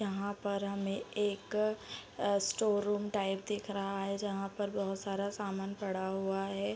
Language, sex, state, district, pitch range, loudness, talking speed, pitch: Hindi, female, Bihar, Sitamarhi, 195-205 Hz, -36 LUFS, 175 wpm, 200 Hz